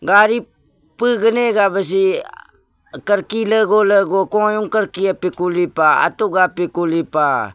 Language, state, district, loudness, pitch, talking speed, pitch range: Nyishi, Arunachal Pradesh, Papum Pare, -16 LUFS, 195 Hz, 85 wpm, 175-215 Hz